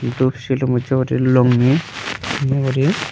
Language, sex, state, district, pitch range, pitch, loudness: Chakma, male, Tripura, Unakoti, 125-135 Hz, 130 Hz, -18 LUFS